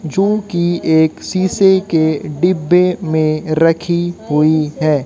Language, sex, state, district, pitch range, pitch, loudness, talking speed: Hindi, female, Haryana, Jhajjar, 155-180 Hz, 165 Hz, -14 LUFS, 120 wpm